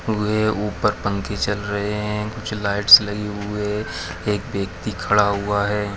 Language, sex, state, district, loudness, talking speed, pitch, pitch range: Hindi, male, Chhattisgarh, Bilaspur, -20 LUFS, 150 wpm, 105 Hz, 100-105 Hz